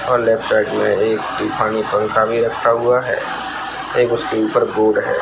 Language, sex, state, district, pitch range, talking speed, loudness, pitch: Hindi, female, Bihar, Darbhanga, 115-155 Hz, 160 wpm, -17 LUFS, 120 Hz